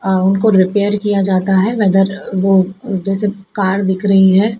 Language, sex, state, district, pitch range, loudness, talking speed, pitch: Hindi, female, Madhya Pradesh, Dhar, 190-205 Hz, -14 LUFS, 170 wpm, 195 Hz